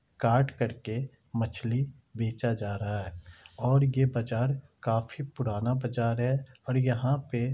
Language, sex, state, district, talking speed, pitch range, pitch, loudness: Hindi, male, Chhattisgarh, Raigarh, 135 wpm, 115-130 Hz, 120 Hz, -30 LUFS